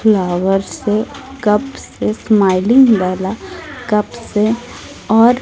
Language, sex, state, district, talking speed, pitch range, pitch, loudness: Hindi, female, Odisha, Malkangiri, 100 wpm, 190-230 Hz, 210 Hz, -15 LUFS